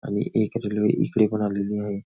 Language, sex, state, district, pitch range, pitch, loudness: Marathi, male, Maharashtra, Nagpur, 105-110 Hz, 105 Hz, -24 LUFS